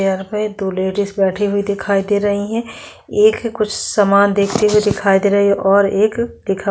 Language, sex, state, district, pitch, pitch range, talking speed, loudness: Hindi, female, Chhattisgarh, Korba, 200 Hz, 195-210 Hz, 205 wpm, -16 LUFS